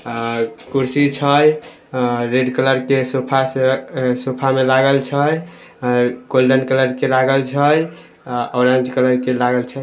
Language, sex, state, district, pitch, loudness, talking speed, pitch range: Maithili, male, Bihar, Samastipur, 130 Hz, -16 LUFS, 150 wpm, 125-135 Hz